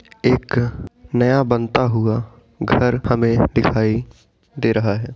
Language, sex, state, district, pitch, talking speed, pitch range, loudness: Hindi, male, Uttar Pradesh, Etah, 120 Hz, 115 wpm, 110-125 Hz, -18 LUFS